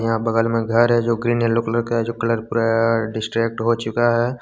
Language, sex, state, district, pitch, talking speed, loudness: Hindi, male, Jharkhand, Deoghar, 115 Hz, 215 wpm, -19 LUFS